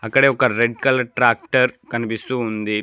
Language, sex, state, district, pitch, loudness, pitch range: Telugu, male, Telangana, Mahabubabad, 120 Hz, -19 LUFS, 115-130 Hz